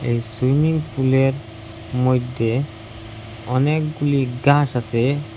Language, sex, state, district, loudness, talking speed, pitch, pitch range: Bengali, male, Assam, Hailakandi, -20 LUFS, 80 wpm, 125 Hz, 115-140 Hz